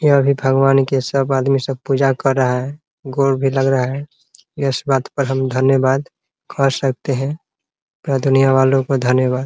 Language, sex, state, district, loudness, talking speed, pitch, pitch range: Hindi, male, Bihar, Muzaffarpur, -17 LUFS, 190 wpm, 135 Hz, 130-135 Hz